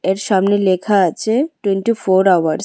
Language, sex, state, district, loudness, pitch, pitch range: Bengali, female, Tripura, West Tripura, -15 LUFS, 195 Hz, 190-220 Hz